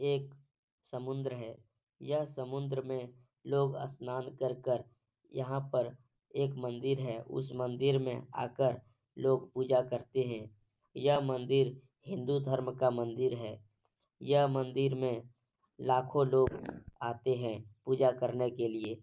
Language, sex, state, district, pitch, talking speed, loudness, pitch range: Hindi, male, Bihar, Supaul, 130 Hz, 130 wpm, -34 LUFS, 120-135 Hz